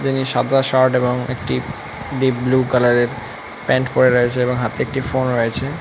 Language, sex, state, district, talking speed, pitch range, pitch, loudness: Bengali, male, West Bengal, North 24 Parganas, 165 wpm, 120-130 Hz, 125 Hz, -18 LUFS